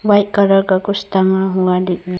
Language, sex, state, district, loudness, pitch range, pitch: Hindi, female, Arunachal Pradesh, Lower Dibang Valley, -14 LUFS, 185-200 Hz, 190 Hz